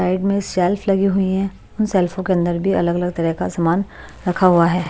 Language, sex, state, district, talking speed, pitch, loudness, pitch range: Hindi, female, Odisha, Malkangiri, 235 wpm, 185 Hz, -19 LUFS, 175-195 Hz